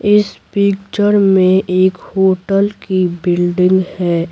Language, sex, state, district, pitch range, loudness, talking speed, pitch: Hindi, female, Bihar, Patna, 180-200 Hz, -14 LUFS, 110 wpm, 190 Hz